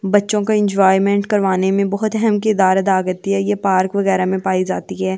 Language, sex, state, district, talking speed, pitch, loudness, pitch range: Hindi, female, Delhi, New Delhi, 210 wpm, 195 Hz, -16 LUFS, 190-205 Hz